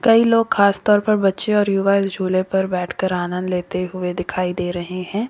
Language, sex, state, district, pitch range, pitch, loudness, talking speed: Hindi, female, Uttar Pradesh, Lalitpur, 180-205 Hz, 190 Hz, -19 LUFS, 180 wpm